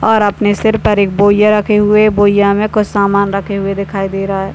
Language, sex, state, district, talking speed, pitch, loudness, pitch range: Hindi, male, Bihar, Purnia, 250 wpm, 205 Hz, -12 LUFS, 195-210 Hz